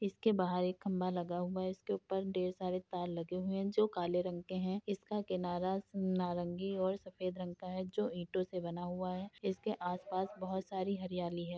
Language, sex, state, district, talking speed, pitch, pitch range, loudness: Hindi, female, Uttar Pradesh, Etah, 200 wpm, 185 Hz, 180-190 Hz, -38 LUFS